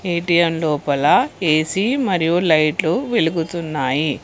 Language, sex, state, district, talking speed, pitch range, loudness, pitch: Telugu, female, Telangana, Hyderabad, 85 wpm, 155-175 Hz, -18 LUFS, 165 Hz